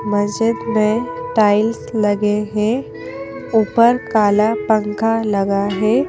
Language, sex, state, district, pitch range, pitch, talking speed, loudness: Hindi, female, Madhya Pradesh, Bhopal, 205-225 Hz, 215 Hz, 100 wpm, -17 LUFS